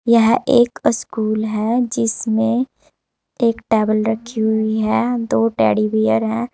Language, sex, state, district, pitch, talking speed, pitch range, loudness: Hindi, female, Uttar Pradesh, Saharanpur, 225 Hz, 130 wpm, 215-235 Hz, -18 LUFS